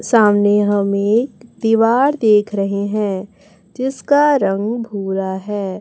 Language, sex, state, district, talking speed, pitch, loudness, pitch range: Hindi, male, Chhattisgarh, Raipur, 115 wpm, 210 Hz, -16 LUFS, 200-230 Hz